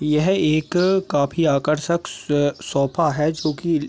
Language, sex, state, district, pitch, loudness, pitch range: Hindi, male, Chhattisgarh, Raigarh, 155 Hz, -20 LUFS, 145-170 Hz